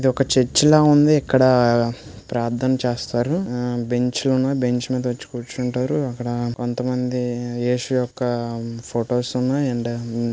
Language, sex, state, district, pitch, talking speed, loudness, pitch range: Telugu, male, Andhra Pradesh, Visakhapatnam, 125 Hz, 135 wpm, -20 LUFS, 120-130 Hz